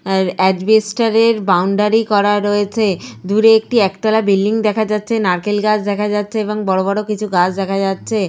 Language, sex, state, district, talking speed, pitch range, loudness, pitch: Bengali, female, Jharkhand, Sahebganj, 160 wpm, 195-220 Hz, -15 LUFS, 210 Hz